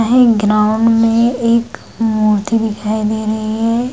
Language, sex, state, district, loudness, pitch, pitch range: Hindi, female, Bihar, Purnia, -14 LUFS, 225 Hz, 215-230 Hz